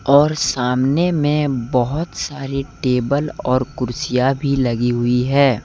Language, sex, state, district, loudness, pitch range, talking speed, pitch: Hindi, male, Jharkhand, Deoghar, -18 LUFS, 125-145 Hz, 125 wpm, 135 Hz